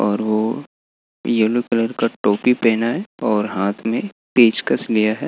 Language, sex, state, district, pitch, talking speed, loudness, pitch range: Hindi, male, Bihar, Gaya, 110 Hz, 160 wpm, -19 LUFS, 105-115 Hz